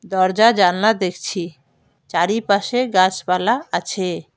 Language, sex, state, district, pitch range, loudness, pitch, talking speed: Bengali, female, West Bengal, Alipurduar, 180-220 Hz, -18 LUFS, 185 Hz, 80 wpm